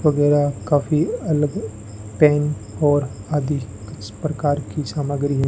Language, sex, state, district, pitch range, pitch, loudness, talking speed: Hindi, male, Rajasthan, Bikaner, 110-150 Hz, 145 Hz, -20 LUFS, 120 wpm